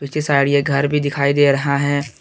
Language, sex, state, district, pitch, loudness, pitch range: Hindi, male, Jharkhand, Deoghar, 140 Hz, -17 LUFS, 140-145 Hz